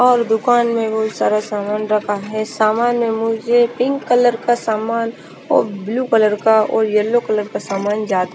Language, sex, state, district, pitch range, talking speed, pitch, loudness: Hindi, female, Chandigarh, Chandigarh, 215-240 Hz, 180 wpm, 220 Hz, -17 LUFS